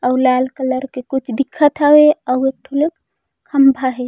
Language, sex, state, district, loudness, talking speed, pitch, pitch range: Chhattisgarhi, female, Chhattisgarh, Raigarh, -15 LUFS, 175 wpm, 265 Hz, 255-290 Hz